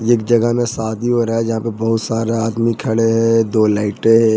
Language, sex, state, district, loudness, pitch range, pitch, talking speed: Hindi, male, Jharkhand, Ranchi, -16 LUFS, 110-115 Hz, 115 Hz, 235 wpm